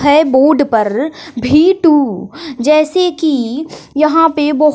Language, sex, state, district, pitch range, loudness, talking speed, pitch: Hindi, female, Bihar, West Champaran, 275-320 Hz, -12 LUFS, 125 wpm, 300 Hz